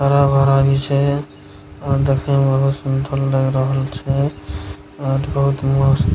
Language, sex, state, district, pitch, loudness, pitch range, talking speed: Maithili, male, Bihar, Begusarai, 135 Hz, -17 LUFS, 135-140 Hz, 145 wpm